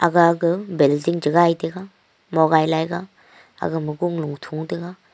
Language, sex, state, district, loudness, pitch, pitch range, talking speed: Wancho, female, Arunachal Pradesh, Longding, -20 LUFS, 170 Hz, 160-175 Hz, 165 wpm